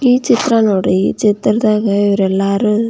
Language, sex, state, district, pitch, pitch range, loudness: Kannada, female, Karnataka, Belgaum, 210 Hz, 200-230 Hz, -13 LUFS